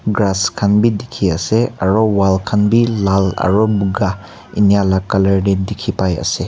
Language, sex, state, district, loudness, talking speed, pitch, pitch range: Nagamese, male, Nagaland, Kohima, -15 LUFS, 175 wpm, 100 Hz, 95-105 Hz